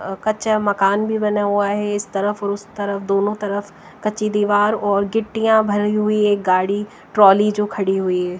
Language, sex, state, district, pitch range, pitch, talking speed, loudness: Hindi, female, Bihar, West Champaran, 200-210 Hz, 205 Hz, 195 wpm, -18 LUFS